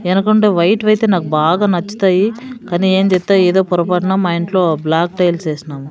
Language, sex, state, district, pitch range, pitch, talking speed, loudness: Telugu, female, Andhra Pradesh, Sri Satya Sai, 170-195 Hz, 185 Hz, 150 wpm, -14 LUFS